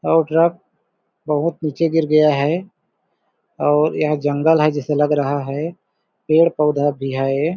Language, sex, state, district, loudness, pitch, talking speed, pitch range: Hindi, male, Chhattisgarh, Balrampur, -18 LUFS, 150 Hz, 150 wpm, 145-165 Hz